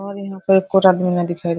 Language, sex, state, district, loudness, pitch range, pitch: Hindi, female, Bihar, Araria, -16 LUFS, 175-195 Hz, 190 Hz